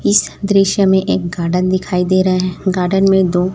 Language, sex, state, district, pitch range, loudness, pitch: Hindi, female, Chhattisgarh, Raipur, 180-195 Hz, -14 LUFS, 185 Hz